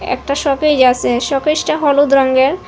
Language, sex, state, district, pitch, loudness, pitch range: Bengali, female, Assam, Hailakandi, 280 Hz, -13 LUFS, 265-295 Hz